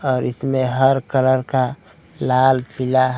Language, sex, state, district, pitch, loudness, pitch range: Hindi, male, Bihar, Kaimur, 130 Hz, -18 LUFS, 130-135 Hz